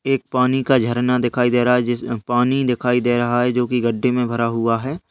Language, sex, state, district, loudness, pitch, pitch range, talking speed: Hindi, male, Uttarakhand, Uttarkashi, -18 LUFS, 125 Hz, 120-125 Hz, 245 wpm